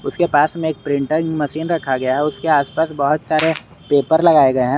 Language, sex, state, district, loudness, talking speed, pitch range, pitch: Hindi, male, Jharkhand, Garhwa, -17 LUFS, 215 wpm, 140-160 Hz, 155 Hz